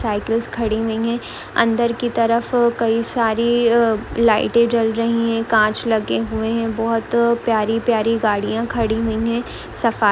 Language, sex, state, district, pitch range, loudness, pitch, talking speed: Hindi, female, West Bengal, Paschim Medinipur, 225-235 Hz, -18 LUFS, 230 Hz, 155 wpm